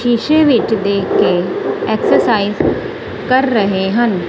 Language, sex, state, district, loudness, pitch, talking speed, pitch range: Punjabi, female, Punjab, Kapurthala, -14 LUFS, 240 Hz, 110 wpm, 200-290 Hz